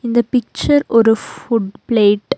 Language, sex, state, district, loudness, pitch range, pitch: Tamil, female, Tamil Nadu, Nilgiris, -15 LUFS, 225-240 Hz, 230 Hz